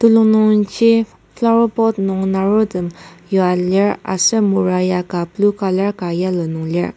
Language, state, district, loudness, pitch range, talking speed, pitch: Ao, Nagaland, Kohima, -16 LUFS, 180-215 Hz, 155 wpm, 195 Hz